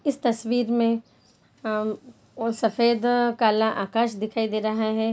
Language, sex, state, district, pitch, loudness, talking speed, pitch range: Hindi, female, Bihar, Jahanabad, 225 Hz, -24 LUFS, 140 wpm, 220-235 Hz